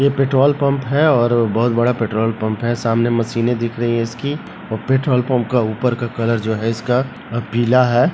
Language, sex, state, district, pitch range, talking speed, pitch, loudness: Hindi, male, Bihar, Begusarai, 115-130 Hz, 205 wpm, 120 Hz, -17 LUFS